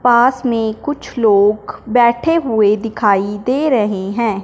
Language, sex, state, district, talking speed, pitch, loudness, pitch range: Hindi, female, Punjab, Fazilka, 135 wpm, 225 Hz, -15 LUFS, 210-245 Hz